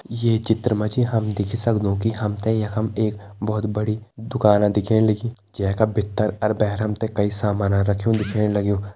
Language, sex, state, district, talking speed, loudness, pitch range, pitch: Hindi, male, Uttarakhand, Tehri Garhwal, 195 wpm, -22 LUFS, 105-110 Hz, 105 Hz